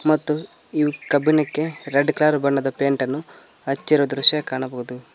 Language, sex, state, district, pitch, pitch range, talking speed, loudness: Kannada, male, Karnataka, Koppal, 145 Hz, 135-150 Hz, 130 wpm, -20 LUFS